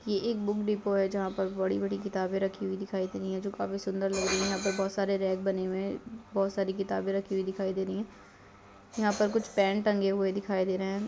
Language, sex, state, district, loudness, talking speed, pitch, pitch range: Hindi, female, Uttar Pradesh, Ghazipur, -31 LUFS, 250 wpm, 195 Hz, 190-200 Hz